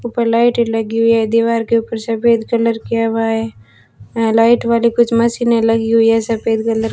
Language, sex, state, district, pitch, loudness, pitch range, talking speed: Hindi, female, Rajasthan, Jaisalmer, 230 Hz, -15 LUFS, 225-235 Hz, 210 wpm